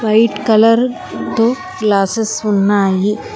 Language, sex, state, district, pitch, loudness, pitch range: Telugu, female, Telangana, Hyderabad, 215 Hz, -14 LUFS, 205-225 Hz